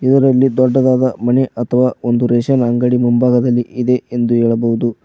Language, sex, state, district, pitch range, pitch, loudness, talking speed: Kannada, male, Karnataka, Koppal, 120-130 Hz, 125 Hz, -14 LUFS, 130 wpm